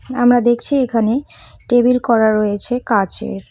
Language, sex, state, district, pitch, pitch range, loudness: Bengali, female, West Bengal, Cooch Behar, 240 Hz, 215-245 Hz, -16 LUFS